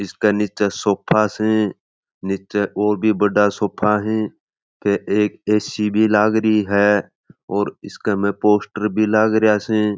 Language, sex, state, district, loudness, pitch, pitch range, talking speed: Marwari, male, Rajasthan, Churu, -18 LUFS, 105 Hz, 105-110 Hz, 140 wpm